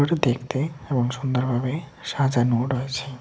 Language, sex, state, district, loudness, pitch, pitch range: Bengali, male, Tripura, West Tripura, -24 LUFS, 130 Hz, 125-140 Hz